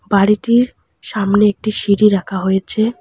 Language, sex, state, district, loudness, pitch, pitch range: Bengali, female, West Bengal, Alipurduar, -15 LUFS, 210 Hz, 195-215 Hz